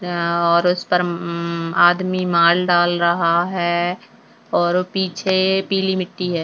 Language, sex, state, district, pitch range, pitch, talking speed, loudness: Hindi, female, Uttarakhand, Tehri Garhwal, 170-185 Hz, 175 Hz, 130 wpm, -18 LUFS